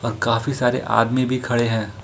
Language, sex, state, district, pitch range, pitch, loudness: Hindi, male, Jharkhand, Ranchi, 115-125 Hz, 115 Hz, -20 LUFS